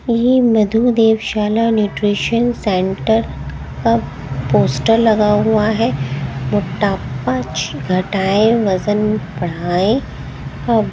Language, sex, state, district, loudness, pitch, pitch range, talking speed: Hindi, female, Haryana, Jhajjar, -16 LUFS, 210 Hz, 180-225 Hz, 90 wpm